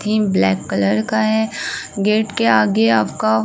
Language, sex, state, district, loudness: Hindi, female, Uttar Pradesh, Varanasi, -17 LUFS